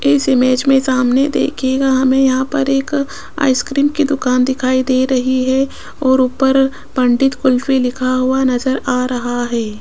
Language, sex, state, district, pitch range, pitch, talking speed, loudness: Hindi, female, Rajasthan, Jaipur, 255-270 Hz, 260 Hz, 160 wpm, -15 LUFS